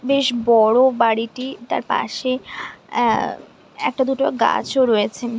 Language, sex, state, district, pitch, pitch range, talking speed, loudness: Bengali, female, West Bengal, Jhargram, 250 Hz, 230-260 Hz, 135 wpm, -19 LUFS